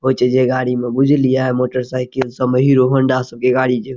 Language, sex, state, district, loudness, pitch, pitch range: Maithili, male, Bihar, Saharsa, -15 LUFS, 130 Hz, 125-130 Hz